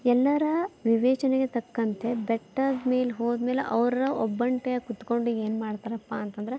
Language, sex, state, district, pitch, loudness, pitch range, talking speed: Kannada, female, Karnataka, Belgaum, 240 Hz, -27 LUFS, 230-255 Hz, 120 wpm